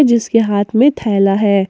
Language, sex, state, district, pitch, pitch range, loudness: Hindi, female, Jharkhand, Ranchi, 215 Hz, 200-235 Hz, -13 LUFS